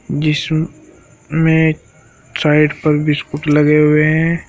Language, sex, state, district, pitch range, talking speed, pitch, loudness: Hindi, male, Uttar Pradesh, Shamli, 150-155 Hz, 105 wpm, 150 Hz, -14 LUFS